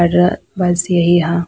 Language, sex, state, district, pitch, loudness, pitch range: Bajjika, female, Bihar, Vaishali, 175 Hz, -15 LUFS, 170-180 Hz